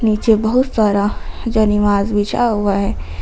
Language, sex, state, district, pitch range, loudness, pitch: Hindi, female, Jharkhand, Ranchi, 200-220 Hz, -16 LUFS, 210 Hz